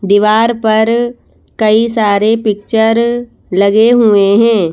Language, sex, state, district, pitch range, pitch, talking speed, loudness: Hindi, female, Madhya Pradesh, Bhopal, 205-230 Hz, 220 Hz, 100 wpm, -11 LUFS